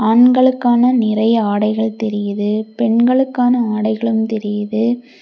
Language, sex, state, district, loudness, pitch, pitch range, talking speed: Tamil, female, Tamil Nadu, Kanyakumari, -15 LUFS, 225 Hz, 215-245 Hz, 80 wpm